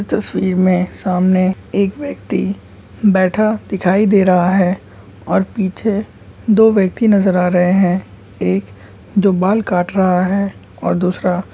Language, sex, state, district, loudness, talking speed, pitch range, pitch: Hindi, male, West Bengal, Kolkata, -15 LUFS, 130 wpm, 180-200 Hz, 190 Hz